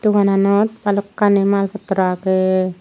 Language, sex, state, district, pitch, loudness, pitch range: Chakma, female, Tripura, Unakoti, 200 Hz, -17 LUFS, 190-205 Hz